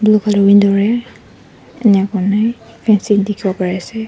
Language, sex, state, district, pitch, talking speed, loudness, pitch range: Nagamese, female, Nagaland, Dimapur, 205 Hz, 130 wpm, -14 LUFS, 200-220 Hz